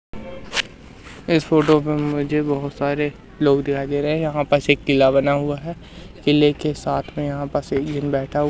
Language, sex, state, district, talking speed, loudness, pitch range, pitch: Hindi, male, Madhya Pradesh, Katni, 190 wpm, -20 LUFS, 140-150 Hz, 145 Hz